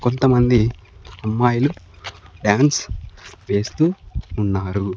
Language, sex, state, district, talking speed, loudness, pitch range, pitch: Telugu, male, Andhra Pradesh, Sri Satya Sai, 60 wpm, -19 LUFS, 95-120 Hz, 100 Hz